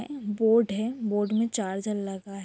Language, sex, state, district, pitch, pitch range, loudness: Hindi, female, Jharkhand, Sahebganj, 215 Hz, 200-230 Hz, -27 LUFS